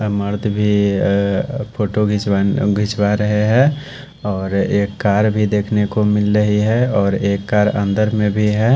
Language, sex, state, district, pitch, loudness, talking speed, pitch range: Hindi, male, Haryana, Charkhi Dadri, 105 Hz, -17 LUFS, 170 wpm, 100-105 Hz